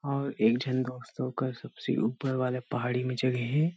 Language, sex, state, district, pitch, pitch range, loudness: Chhattisgarhi, male, Chhattisgarh, Rajnandgaon, 130 Hz, 125-135 Hz, -30 LUFS